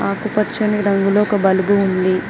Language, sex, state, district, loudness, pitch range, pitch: Telugu, female, Telangana, Mahabubabad, -16 LUFS, 190-210 Hz, 200 Hz